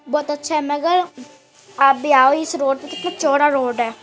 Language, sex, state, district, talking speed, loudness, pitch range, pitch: Hindi, female, Uttar Pradesh, Hamirpur, 225 wpm, -17 LUFS, 270-305 Hz, 290 Hz